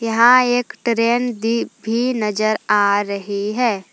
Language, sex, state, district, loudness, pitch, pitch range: Hindi, female, Jharkhand, Palamu, -18 LUFS, 225 Hz, 210-240 Hz